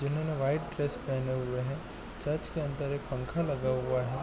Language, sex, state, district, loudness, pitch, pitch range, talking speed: Hindi, male, Bihar, East Champaran, -33 LUFS, 140 Hz, 130-150 Hz, 185 wpm